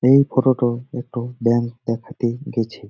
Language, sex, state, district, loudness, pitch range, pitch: Bengali, male, West Bengal, Jalpaiguri, -21 LUFS, 115-130 Hz, 120 Hz